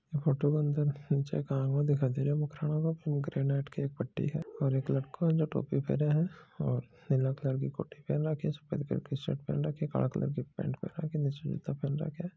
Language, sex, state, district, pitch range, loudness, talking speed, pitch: Marwari, male, Rajasthan, Churu, 135-155 Hz, -33 LUFS, 150 wpm, 150 Hz